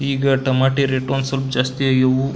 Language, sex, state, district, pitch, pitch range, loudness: Kannada, male, Karnataka, Belgaum, 135 Hz, 130-135 Hz, -18 LUFS